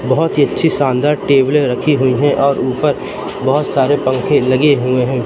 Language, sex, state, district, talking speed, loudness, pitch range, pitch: Hindi, male, Madhya Pradesh, Katni, 180 wpm, -14 LUFS, 130-145 Hz, 140 Hz